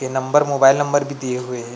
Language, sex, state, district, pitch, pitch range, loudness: Chhattisgarhi, male, Chhattisgarh, Rajnandgaon, 135 Hz, 125-145 Hz, -18 LUFS